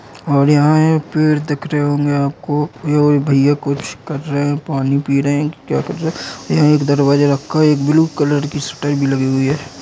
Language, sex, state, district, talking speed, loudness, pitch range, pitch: Hindi, female, Uttar Pradesh, Jalaun, 240 wpm, -15 LUFS, 140-150 Hz, 145 Hz